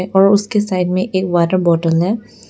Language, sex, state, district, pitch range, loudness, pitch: Hindi, female, Arunachal Pradesh, Lower Dibang Valley, 175-200 Hz, -15 LUFS, 185 Hz